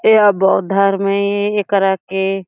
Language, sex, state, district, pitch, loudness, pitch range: Chhattisgarhi, female, Chhattisgarh, Jashpur, 195 Hz, -15 LUFS, 195-205 Hz